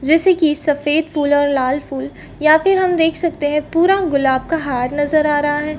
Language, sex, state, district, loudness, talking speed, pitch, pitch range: Hindi, female, Chhattisgarh, Bastar, -16 LUFS, 220 wpm, 300 Hz, 285-325 Hz